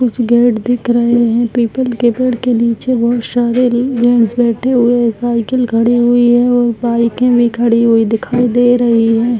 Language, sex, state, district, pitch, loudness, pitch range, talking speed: Hindi, female, Bihar, Begusarai, 240 Hz, -12 LUFS, 235-245 Hz, 185 wpm